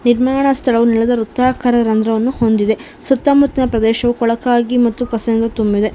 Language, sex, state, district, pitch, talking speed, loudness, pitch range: Kannada, female, Karnataka, Bangalore, 235 Hz, 140 wpm, -15 LUFS, 225-250 Hz